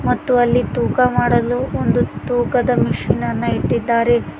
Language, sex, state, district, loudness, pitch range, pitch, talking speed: Kannada, female, Karnataka, Koppal, -17 LUFS, 240-250 Hz, 245 Hz, 120 wpm